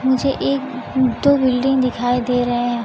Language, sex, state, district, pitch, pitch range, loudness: Hindi, female, Bihar, Kaimur, 255 Hz, 245-265 Hz, -18 LUFS